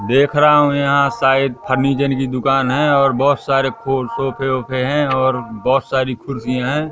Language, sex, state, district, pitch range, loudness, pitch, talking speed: Hindi, male, Madhya Pradesh, Katni, 130-140 Hz, -16 LUFS, 135 Hz, 180 wpm